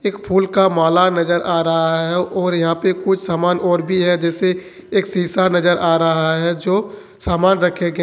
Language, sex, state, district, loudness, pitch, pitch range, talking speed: Hindi, male, Jharkhand, Ranchi, -17 LUFS, 175 Hz, 170-185 Hz, 195 wpm